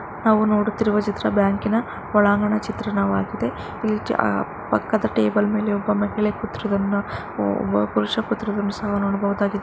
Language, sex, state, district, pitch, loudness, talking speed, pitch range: Kannada, female, Karnataka, Mysore, 205 Hz, -22 LUFS, 120 wpm, 200-210 Hz